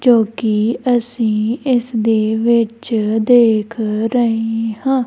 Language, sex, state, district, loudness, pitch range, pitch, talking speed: Punjabi, female, Punjab, Kapurthala, -16 LUFS, 220-240 Hz, 225 Hz, 105 wpm